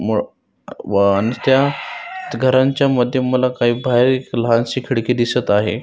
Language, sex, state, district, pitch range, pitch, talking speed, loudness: Marathi, male, Maharashtra, Solapur, 115-130 Hz, 125 Hz, 115 wpm, -17 LUFS